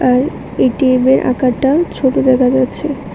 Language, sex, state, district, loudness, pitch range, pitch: Bengali, female, Tripura, West Tripura, -13 LUFS, 255-265 Hz, 260 Hz